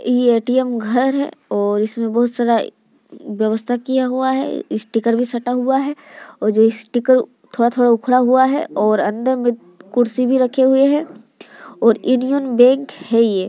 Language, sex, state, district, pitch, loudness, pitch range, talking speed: Hindi, female, Bihar, Muzaffarpur, 245 Hz, -17 LUFS, 230-260 Hz, 165 wpm